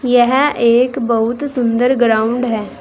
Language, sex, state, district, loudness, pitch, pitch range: Hindi, female, Uttar Pradesh, Saharanpur, -14 LUFS, 240 Hz, 230-255 Hz